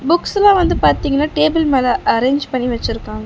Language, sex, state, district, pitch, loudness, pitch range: Tamil, female, Tamil Nadu, Chennai, 285 Hz, -15 LUFS, 255-325 Hz